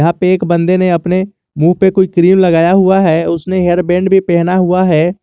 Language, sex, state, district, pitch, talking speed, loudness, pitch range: Hindi, male, Jharkhand, Garhwa, 180 Hz, 195 wpm, -11 LUFS, 170-185 Hz